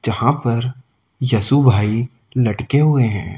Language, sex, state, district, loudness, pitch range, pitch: Hindi, male, Delhi, New Delhi, -17 LUFS, 115-130 Hz, 120 Hz